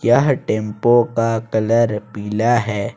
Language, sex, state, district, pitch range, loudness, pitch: Hindi, male, Jharkhand, Ranchi, 110-120 Hz, -18 LUFS, 115 Hz